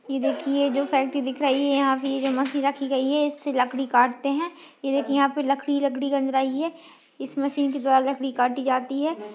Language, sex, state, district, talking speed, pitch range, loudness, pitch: Hindi, female, Goa, North and South Goa, 155 wpm, 265-285 Hz, -24 LUFS, 275 Hz